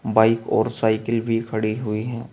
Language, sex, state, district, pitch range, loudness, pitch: Hindi, male, Uttar Pradesh, Saharanpur, 110-115 Hz, -22 LUFS, 110 Hz